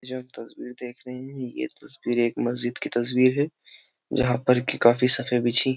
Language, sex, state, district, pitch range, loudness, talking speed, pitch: Hindi, male, Uttar Pradesh, Jyotiba Phule Nagar, 120-130 Hz, -21 LUFS, 230 wpm, 125 Hz